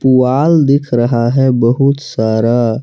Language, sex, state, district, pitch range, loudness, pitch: Hindi, male, Jharkhand, Palamu, 120-140 Hz, -12 LUFS, 125 Hz